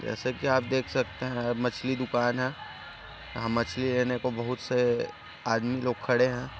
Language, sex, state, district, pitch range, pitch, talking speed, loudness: Hindi, male, Chhattisgarh, Kabirdham, 120-130 Hz, 125 Hz, 175 wpm, -29 LUFS